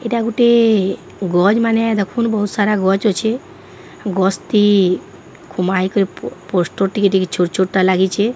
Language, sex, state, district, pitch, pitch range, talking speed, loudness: Odia, female, Odisha, Sambalpur, 200 Hz, 190-225 Hz, 145 wpm, -16 LUFS